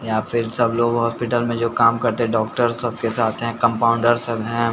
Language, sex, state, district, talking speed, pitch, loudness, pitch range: Hindi, male, Bihar, Patna, 215 wpm, 115 Hz, -20 LUFS, 115-120 Hz